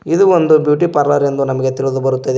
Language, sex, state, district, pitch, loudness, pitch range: Kannada, male, Karnataka, Koppal, 140 Hz, -13 LUFS, 130-150 Hz